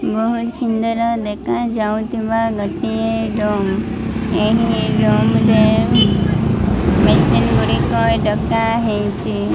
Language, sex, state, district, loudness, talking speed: Odia, female, Odisha, Malkangiri, -16 LUFS, 75 wpm